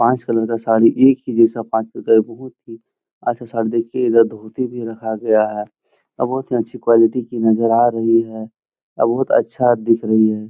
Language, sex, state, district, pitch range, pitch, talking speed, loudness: Hindi, male, Bihar, Jahanabad, 110-120 Hz, 115 Hz, 205 wpm, -17 LUFS